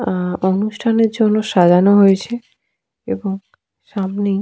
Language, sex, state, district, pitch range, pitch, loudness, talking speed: Bengali, female, Jharkhand, Sahebganj, 190-220 Hz, 200 Hz, -16 LUFS, 110 wpm